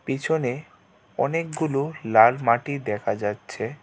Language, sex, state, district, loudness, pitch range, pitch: Bengali, male, Tripura, West Tripura, -23 LUFS, 110-155 Hz, 135 Hz